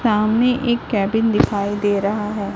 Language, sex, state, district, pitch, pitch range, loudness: Hindi, female, Chhattisgarh, Raipur, 210 Hz, 205-225 Hz, -18 LUFS